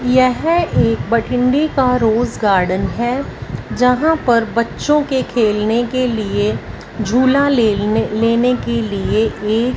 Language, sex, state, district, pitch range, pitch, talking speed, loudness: Hindi, female, Punjab, Fazilka, 220-255 Hz, 240 Hz, 125 wpm, -16 LUFS